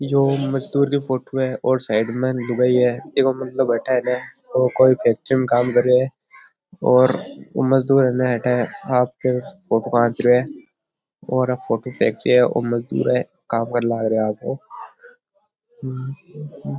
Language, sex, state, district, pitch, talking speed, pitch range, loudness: Rajasthani, male, Rajasthan, Churu, 125 Hz, 160 wpm, 120-135 Hz, -20 LUFS